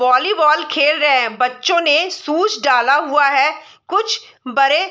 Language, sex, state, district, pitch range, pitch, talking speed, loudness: Hindi, female, Bihar, Saharsa, 280-375 Hz, 305 Hz, 160 wpm, -15 LUFS